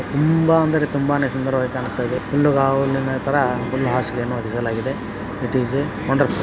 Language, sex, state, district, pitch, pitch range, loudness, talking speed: Kannada, male, Karnataka, Belgaum, 130 Hz, 125-140 Hz, -20 LUFS, 130 wpm